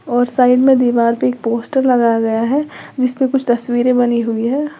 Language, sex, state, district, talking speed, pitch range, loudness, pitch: Hindi, female, Uttar Pradesh, Lalitpur, 200 wpm, 235-260 Hz, -15 LUFS, 245 Hz